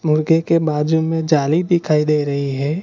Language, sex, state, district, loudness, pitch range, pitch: Hindi, male, Gujarat, Gandhinagar, -17 LUFS, 150-165 Hz, 155 Hz